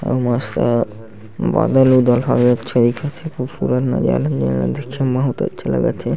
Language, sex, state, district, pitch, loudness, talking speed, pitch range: Chhattisgarhi, male, Chhattisgarh, Sarguja, 125 Hz, -17 LUFS, 155 wpm, 115-130 Hz